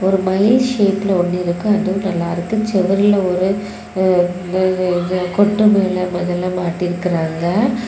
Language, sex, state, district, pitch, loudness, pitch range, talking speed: Tamil, female, Tamil Nadu, Kanyakumari, 185 Hz, -17 LUFS, 180-200 Hz, 135 wpm